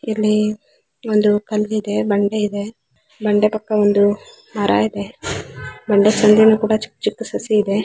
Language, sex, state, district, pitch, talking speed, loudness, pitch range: Kannada, female, Karnataka, Belgaum, 210 Hz, 140 wpm, -17 LUFS, 200-215 Hz